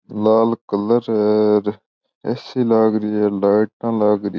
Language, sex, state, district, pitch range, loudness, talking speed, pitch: Marwari, male, Rajasthan, Churu, 105-115 Hz, -18 LUFS, 165 wpm, 105 Hz